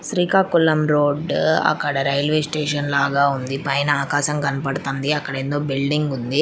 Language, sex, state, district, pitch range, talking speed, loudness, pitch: Telugu, female, Andhra Pradesh, Srikakulam, 140-150 Hz, 120 wpm, -20 LUFS, 145 Hz